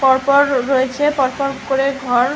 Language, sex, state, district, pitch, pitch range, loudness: Bengali, female, West Bengal, Malda, 270 Hz, 260-275 Hz, -16 LUFS